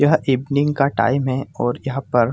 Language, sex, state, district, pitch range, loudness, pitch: Hindi, male, Jharkhand, Sahebganj, 125-140 Hz, -19 LUFS, 135 Hz